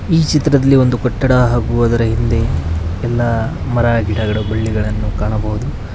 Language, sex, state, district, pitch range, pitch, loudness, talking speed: Kannada, male, Karnataka, Koppal, 105-120 Hz, 115 Hz, -15 LUFS, 120 wpm